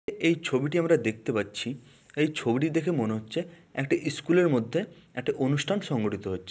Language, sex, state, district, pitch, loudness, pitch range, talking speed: Bengali, male, West Bengal, Malda, 145 Hz, -28 LUFS, 115-165 Hz, 155 wpm